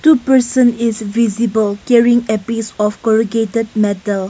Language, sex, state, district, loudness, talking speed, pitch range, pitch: English, female, Nagaland, Kohima, -15 LUFS, 140 wpm, 215-235 Hz, 225 Hz